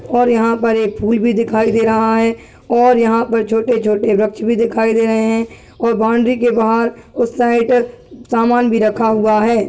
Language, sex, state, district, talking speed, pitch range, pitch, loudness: Angika, female, Bihar, Madhepura, 200 wpm, 220-235 Hz, 230 Hz, -14 LUFS